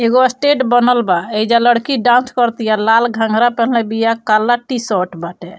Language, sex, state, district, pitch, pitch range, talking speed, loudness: Bhojpuri, female, Bihar, Muzaffarpur, 235 Hz, 220-245 Hz, 160 wpm, -14 LUFS